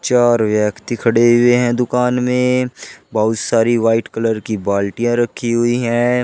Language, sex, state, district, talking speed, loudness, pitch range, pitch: Hindi, male, Uttar Pradesh, Shamli, 155 wpm, -16 LUFS, 115-125 Hz, 120 Hz